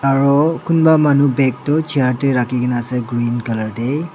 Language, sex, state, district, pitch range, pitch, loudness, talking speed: Nagamese, male, Nagaland, Dimapur, 125-145 Hz, 135 Hz, -16 LUFS, 190 wpm